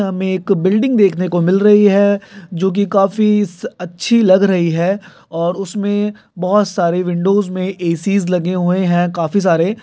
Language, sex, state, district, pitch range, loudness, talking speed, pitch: Hindi, male, Bihar, Jamui, 180-200 Hz, -15 LUFS, 175 wpm, 190 Hz